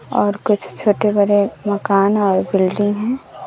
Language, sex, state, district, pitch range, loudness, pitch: Hindi, female, Bihar, West Champaran, 200-210 Hz, -17 LUFS, 205 Hz